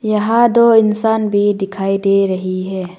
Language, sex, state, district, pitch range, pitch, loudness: Hindi, female, Arunachal Pradesh, Longding, 195-220 Hz, 205 Hz, -14 LUFS